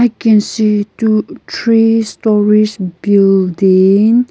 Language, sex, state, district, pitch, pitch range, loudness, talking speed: English, female, Nagaland, Kohima, 210 Hz, 195-225 Hz, -12 LUFS, 85 wpm